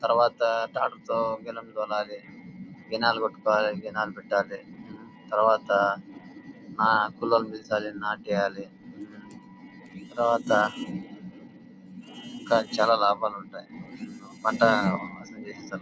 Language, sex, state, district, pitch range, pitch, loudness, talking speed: Telugu, male, Andhra Pradesh, Anantapur, 105-115 Hz, 110 Hz, -26 LUFS, 45 wpm